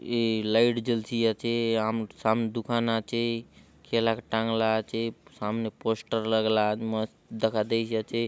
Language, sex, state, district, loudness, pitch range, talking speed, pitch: Halbi, male, Chhattisgarh, Bastar, -28 LUFS, 110-115 Hz, 150 wpm, 115 Hz